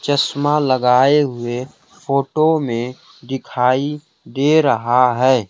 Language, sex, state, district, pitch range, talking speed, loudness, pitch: Hindi, male, Bihar, Kaimur, 125-145 Hz, 100 wpm, -17 LUFS, 135 Hz